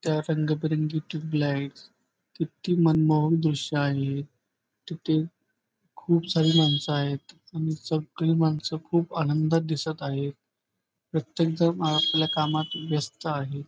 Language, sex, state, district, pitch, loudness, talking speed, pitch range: Marathi, male, Maharashtra, Pune, 155 Hz, -26 LUFS, 110 wpm, 145-160 Hz